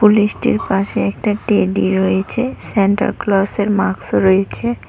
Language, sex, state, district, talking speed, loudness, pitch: Bengali, female, West Bengal, Cooch Behar, 85 wpm, -16 LUFS, 195 Hz